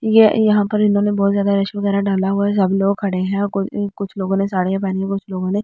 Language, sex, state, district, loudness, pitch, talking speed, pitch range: Hindi, female, Delhi, New Delhi, -18 LUFS, 200 Hz, 300 wpm, 195-205 Hz